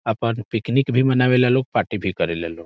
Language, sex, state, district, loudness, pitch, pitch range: Bhojpuri, male, Bihar, Saran, -20 LUFS, 120 Hz, 110-130 Hz